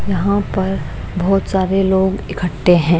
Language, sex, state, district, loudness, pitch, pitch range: Hindi, female, Bihar, Patna, -17 LUFS, 190 Hz, 180-195 Hz